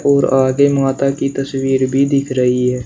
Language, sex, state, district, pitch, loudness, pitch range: Hindi, male, Uttar Pradesh, Shamli, 135 Hz, -15 LUFS, 130-140 Hz